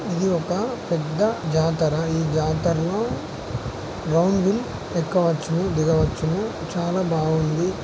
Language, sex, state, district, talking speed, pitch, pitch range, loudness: Telugu, male, Andhra Pradesh, Guntur, 100 wpm, 170 Hz, 160-180 Hz, -23 LUFS